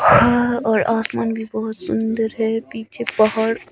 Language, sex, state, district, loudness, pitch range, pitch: Hindi, female, Himachal Pradesh, Shimla, -19 LUFS, 220-230 Hz, 225 Hz